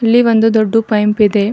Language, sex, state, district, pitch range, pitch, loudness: Kannada, female, Karnataka, Bidar, 210-225 Hz, 220 Hz, -12 LUFS